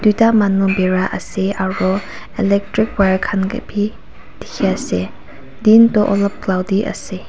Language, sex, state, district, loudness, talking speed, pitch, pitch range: Nagamese, female, Nagaland, Kohima, -16 LUFS, 140 wpm, 200 Hz, 190-210 Hz